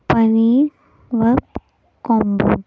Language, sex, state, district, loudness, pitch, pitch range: Hindi, female, Delhi, New Delhi, -17 LUFS, 225 Hz, 215-245 Hz